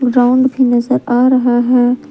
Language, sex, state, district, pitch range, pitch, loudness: Hindi, female, Jharkhand, Palamu, 245-260 Hz, 250 Hz, -12 LUFS